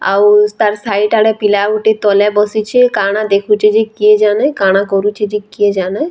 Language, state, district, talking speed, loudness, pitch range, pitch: Sambalpuri, Odisha, Sambalpur, 155 wpm, -12 LUFS, 205-220 Hz, 210 Hz